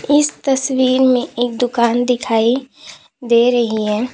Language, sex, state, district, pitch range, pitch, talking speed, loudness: Hindi, female, Uttar Pradesh, Lalitpur, 235-260 Hz, 250 Hz, 130 wpm, -16 LUFS